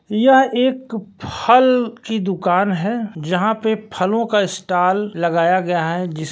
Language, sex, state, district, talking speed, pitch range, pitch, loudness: Hindi, male, Uttar Pradesh, Varanasi, 140 wpm, 180-230 Hz, 205 Hz, -17 LUFS